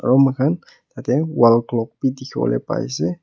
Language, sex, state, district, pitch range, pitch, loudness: Nagamese, male, Nagaland, Kohima, 115-135 Hz, 130 Hz, -19 LUFS